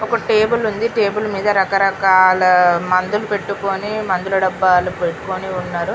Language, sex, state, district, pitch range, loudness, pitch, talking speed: Telugu, female, Telangana, Karimnagar, 185-210 Hz, -16 LUFS, 195 Hz, 130 wpm